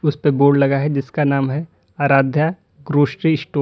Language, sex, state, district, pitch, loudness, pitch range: Hindi, male, Uttar Pradesh, Lalitpur, 145 Hz, -17 LUFS, 140-150 Hz